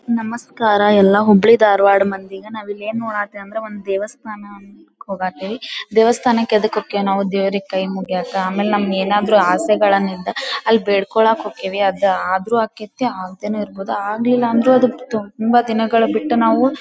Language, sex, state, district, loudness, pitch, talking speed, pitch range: Kannada, female, Karnataka, Dharwad, -17 LUFS, 210 Hz, 140 wpm, 195-225 Hz